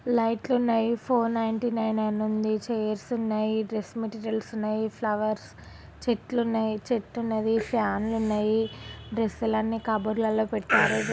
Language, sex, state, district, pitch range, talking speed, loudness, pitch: Telugu, female, Telangana, Karimnagar, 215-230 Hz, 140 wpm, -27 LUFS, 220 Hz